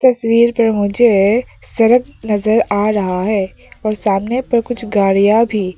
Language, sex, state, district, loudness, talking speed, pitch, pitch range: Hindi, female, Arunachal Pradesh, Papum Pare, -14 LUFS, 145 wpm, 215 Hz, 200-235 Hz